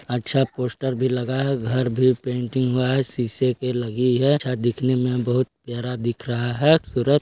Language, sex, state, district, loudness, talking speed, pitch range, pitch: Hindi, male, Chhattisgarh, Balrampur, -22 LUFS, 200 wpm, 125-130 Hz, 125 Hz